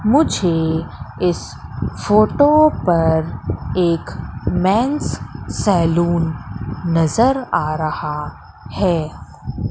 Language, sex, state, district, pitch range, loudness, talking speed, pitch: Hindi, female, Madhya Pradesh, Katni, 155-205 Hz, -18 LUFS, 70 wpm, 170 Hz